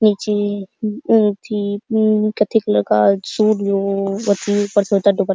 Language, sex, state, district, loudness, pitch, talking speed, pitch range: Hindi, female, Bihar, Araria, -17 LUFS, 205 Hz, 155 wpm, 200-215 Hz